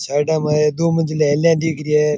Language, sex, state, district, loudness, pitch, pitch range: Rajasthani, male, Rajasthan, Churu, -17 LUFS, 150 Hz, 150-160 Hz